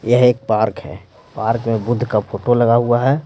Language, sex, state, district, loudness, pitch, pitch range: Hindi, male, Bihar, Patna, -17 LUFS, 120 Hz, 110-125 Hz